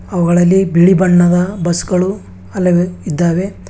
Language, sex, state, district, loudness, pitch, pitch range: Kannada, male, Karnataka, Bangalore, -13 LUFS, 175 Hz, 175-185 Hz